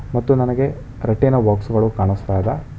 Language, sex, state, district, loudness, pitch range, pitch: Kannada, male, Karnataka, Bangalore, -18 LUFS, 105-130 Hz, 120 Hz